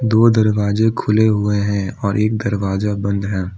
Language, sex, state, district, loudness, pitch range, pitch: Hindi, male, Assam, Kamrup Metropolitan, -17 LUFS, 100-110 Hz, 105 Hz